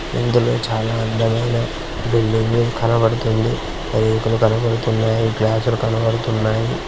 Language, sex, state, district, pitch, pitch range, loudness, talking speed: Telugu, male, Andhra Pradesh, Srikakulam, 115 Hz, 110-115 Hz, -18 LUFS, 85 wpm